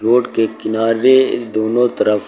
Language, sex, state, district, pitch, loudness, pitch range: Hindi, male, Uttar Pradesh, Lucknow, 115 Hz, -15 LUFS, 110-120 Hz